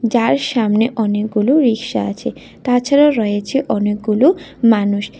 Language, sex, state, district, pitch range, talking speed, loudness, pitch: Bengali, female, Tripura, West Tripura, 210-265 Hz, 105 wpm, -16 LUFS, 230 Hz